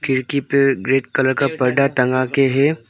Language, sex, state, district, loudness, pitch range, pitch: Hindi, male, Arunachal Pradesh, Longding, -17 LUFS, 130-140 Hz, 135 Hz